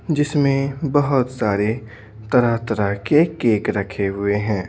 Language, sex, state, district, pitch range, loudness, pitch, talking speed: Hindi, male, Bihar, Patna, 105-140 Hz, -19 LUFS, 115 Hz, 115 wpm